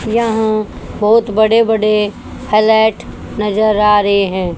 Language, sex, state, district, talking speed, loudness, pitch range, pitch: Hindi, female, Haryana, Charkhi Dadri, 120 wpm, -13 LUFS, 210-220 Hz, 215 Hz